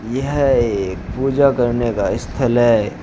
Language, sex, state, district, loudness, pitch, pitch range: Hindi, male, Uttar Pradesh, Shamli, -17 LUFS, 120 Hz, 110-135 Hz